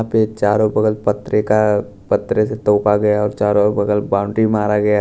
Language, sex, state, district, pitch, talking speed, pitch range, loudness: Hindi, male, Chhattisgarh, Raipur, 105 Hz, 215 wpm, 105-110 Hz, -16 LUFS